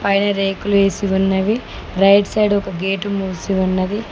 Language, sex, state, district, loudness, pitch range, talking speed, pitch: Telugu, female, Telangana, Mahabubabad, -17 LUFS, 190-200 Hz, 145 wpm, 195 Hz